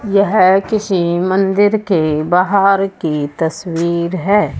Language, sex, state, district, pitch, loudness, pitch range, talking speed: Hindi, female, Haryana, Rohtak, 185 Hz, -14 LUFS, 170-200 Hz, 105 wpm